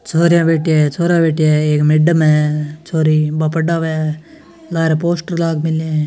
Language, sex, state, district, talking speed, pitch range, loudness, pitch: Hindi, male, Rajasthan, Nagaur, 180 wpm, 155-165 Hz, -15 LUFS, 160 Hz